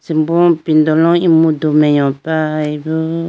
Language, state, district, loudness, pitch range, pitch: Idu Mishmi, Arunachal Pradesh, Lower Dibang Valley, -13 LUFS, 155-165 Hz, 155 Hz